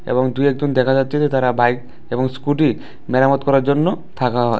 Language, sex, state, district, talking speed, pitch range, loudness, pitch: Bengali, male, Tripura, West Tripura, 185 wpm, 125-140 Hz, -17 LUFS, 135 Hz